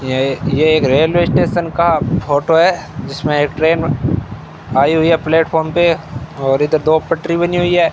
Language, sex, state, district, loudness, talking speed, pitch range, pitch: Hindi, male, Rajasthan, Bikaner, -14 LUFS, 175 wpm, 145-170 Hz, 160 Hz